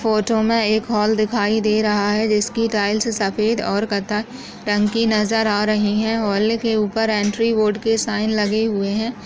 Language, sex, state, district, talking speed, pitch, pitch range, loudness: Hindi, female, Goa, North and South Goa, 190 wpm, 215 Hz, 210-225 Hz, -19 LUFS